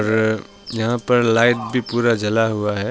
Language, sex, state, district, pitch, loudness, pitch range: Hindi, male, Arunachal Pradesh, Longding, 115 Hz, -19 LUFS, 105-120 Hz